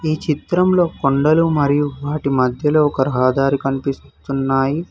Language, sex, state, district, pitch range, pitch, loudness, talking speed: Telugu, male, Telangana, Hyderabad, 135-155 Hz, 145 Hz, -17 LUFS, 110 wpm